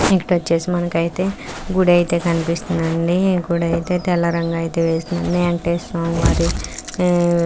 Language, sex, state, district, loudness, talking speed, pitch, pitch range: Telugu, female, Telangana, Nalgonda, -19 LUFS, 95 wpm, 170 Hz, 165-175 Hz